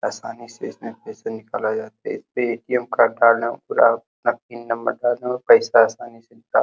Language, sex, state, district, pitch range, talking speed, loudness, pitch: Hindi, male, Uttar Pradesh, Hamirpur, 115-125 Hz, 165 wpm, -20 LUFS, 120 Hz